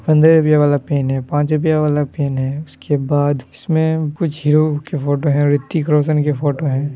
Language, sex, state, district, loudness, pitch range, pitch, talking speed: Hindi, male, Bihar, Kishanganj, -16 LUFS, 145-155 Hz, 150 Hz, 200 wpm